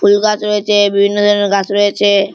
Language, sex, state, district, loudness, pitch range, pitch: Bengali, male, West Bengal, Malda, -12 LUFS, 200-205 Hz, 205 Hz